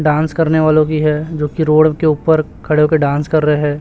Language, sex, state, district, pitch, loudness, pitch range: Hindi, male, Chhattisgarh, Raipur, 155 Hz, -14 LUFS, 150-155 Hz